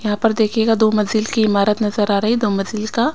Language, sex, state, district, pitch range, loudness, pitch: Hindi, female, Himachal Pradesh, Shimla, 210-225 Hz, -17 LUFS, 215 Hz